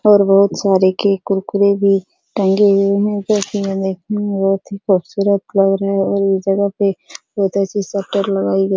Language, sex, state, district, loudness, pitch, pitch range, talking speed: Hindi, female, Bihar, Supaul, -16 LUFS, 195 Hz, 195-200 Hz, 205 wpm